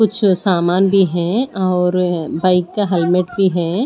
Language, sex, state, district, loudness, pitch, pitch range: Hindi, female, Punjab, Pathankot, -16 LUFS, 185 Hz, 175-195 Hz